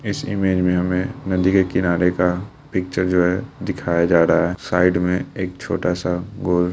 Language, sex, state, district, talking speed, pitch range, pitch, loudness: Hindi, male, Bihar, Lakhisarai, 195 wpm, 90-95 Hz, 90 Hz, -20 LUFS